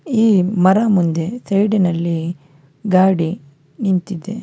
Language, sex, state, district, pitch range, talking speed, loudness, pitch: Kannada, male, Karnataka, Bangalore, 165-205 Hz, 80 wpm, -17 LUFS, 185 Hz